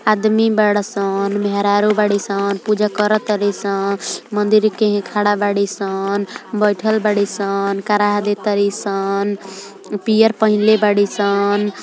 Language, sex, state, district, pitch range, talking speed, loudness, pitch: Hindi, female, Uttar Pradesh, Ghazipur, 200-210 Hz, 110 wpm, -17 LUFS, 205 Hz